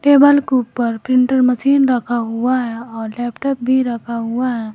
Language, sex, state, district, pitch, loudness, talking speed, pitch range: Hindi, female, Jharkhand, Garhwa, 245 Hz, -16 LUFS, 175 wpm, 235-260 Hz